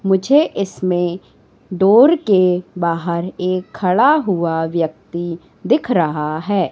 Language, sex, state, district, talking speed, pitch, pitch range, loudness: Hindi, female, Madhya Pradesh, Katni, 105 wpm, 180 Hz, 170-200 Hz, -17 LUFS